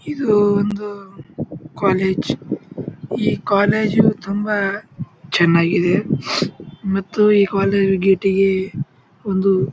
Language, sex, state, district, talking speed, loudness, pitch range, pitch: Kannada, male, Karnataka, Bijapur, 80 wpm, -18 LUFS, 175-205 Hz, 195 Hz